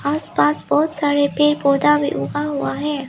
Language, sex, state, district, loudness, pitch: Hindi, female, Arunachal Pradesh, Lower Dibang Valley, -18 LUFS, 285 Hz